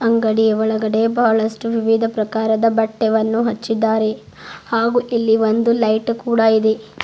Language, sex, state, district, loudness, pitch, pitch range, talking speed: Kannada, female, Karnataka, Bidar, -17 LUFS, 225 Hz, 220-230 Hz, 110 wpm